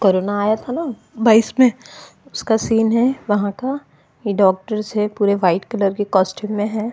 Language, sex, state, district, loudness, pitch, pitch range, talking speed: Hindi, female, Goa, North and South Goa, -18 LUFS, 215 Hz, 200-230 Hz, 180 wpm